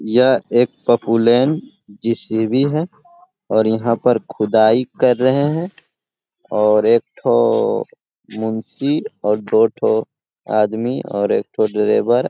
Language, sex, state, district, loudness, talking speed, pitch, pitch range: Hindi, male, Bihar, Lakhisarai, -17 LUFS, 120 wpm, 120 Hz, 110-145 Hz